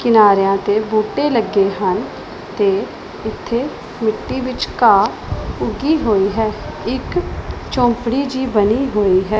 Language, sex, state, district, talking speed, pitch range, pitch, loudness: Punjabi, female, Punjab, Pathankot, 120 wpm, 205-255 Hz, 220 Hz, -17 LUFS